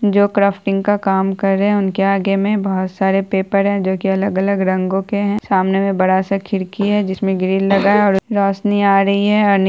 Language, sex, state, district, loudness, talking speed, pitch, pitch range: Hindi, female, Bihar, Saharsa, -16 LUFS, 235 wpm, 195 Hz, 190-200 Hz